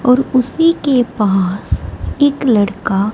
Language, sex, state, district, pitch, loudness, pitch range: Hindi, male, Punjab, Kapurthala, 250 Hz, -14 LUFS, 205-280 Hz